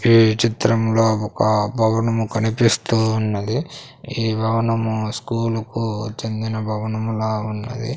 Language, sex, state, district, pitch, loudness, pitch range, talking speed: Telugu, male, Andhra Pradesh, Sri Satya Sai, 110 Hz, -20 LUFS, 110-115 Hz, 100 wpm